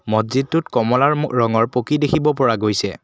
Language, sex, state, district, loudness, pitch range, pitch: Assamese, male, Assam, Kamrup Metropolitan, -18 LUFS, 115-150 Hz, 125 Hz